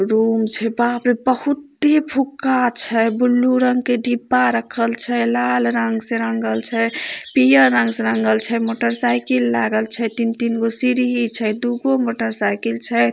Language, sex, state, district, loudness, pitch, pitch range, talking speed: Maithili, female, Bihar, Samastipur, -17 LUFS, 230 Hz, 195-245 Hz, 170 wpm